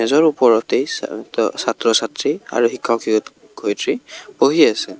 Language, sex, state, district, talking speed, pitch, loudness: Assamese, male, Assam, Kamrup Metropolitan, 95 wpm, 125 Hz, -18 LUFS